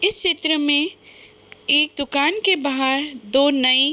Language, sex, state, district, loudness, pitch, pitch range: Hindi, female, Uttar Pradesh, Budaun, -18 LUFS, 290 Hz, 275-315 Hz